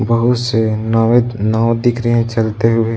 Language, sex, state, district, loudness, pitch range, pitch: Hindi, male, Bihar, Jahanabad, -15 LUFS, 115-120 Hz, 115 Hz